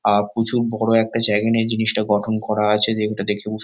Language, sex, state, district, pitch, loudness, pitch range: Bengali, male, West Bengal, North 24 Parganas, 110 Hz, -18 LUFS, 105-115 Hz